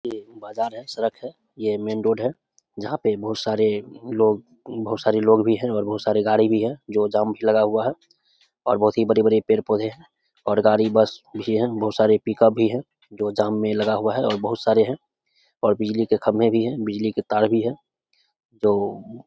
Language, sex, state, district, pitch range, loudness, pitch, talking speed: Hindi, male, Bihar, Samastipur, 105-115 Hz, -22 LUFS, 110 Hz, 220 wpm